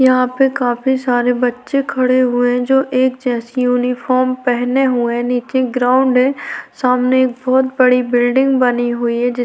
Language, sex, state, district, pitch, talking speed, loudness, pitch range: Hindi, female, Uttarakhand, Tehri Garhwal, 250 Hz, 170 wpm, -15 LUFS, 245-260 Hz